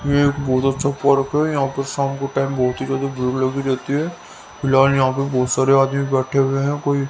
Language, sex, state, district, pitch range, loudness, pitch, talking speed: Hindi, male, Haryana, Rohtak, 130-140 Hz, -19 LUFS, 135 Hz, 245 wpm